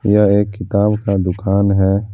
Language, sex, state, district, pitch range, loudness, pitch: Hindi, male, Jharkhand, Deoghar, 100-105 Hz, -15 LUFS, 100 Hz